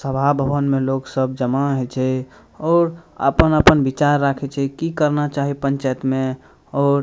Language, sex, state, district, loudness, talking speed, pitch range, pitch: Maithili, male, Bihar, Madhepura, -19 LUFS, 170 wpm, 130-145 Hz, 140 Hz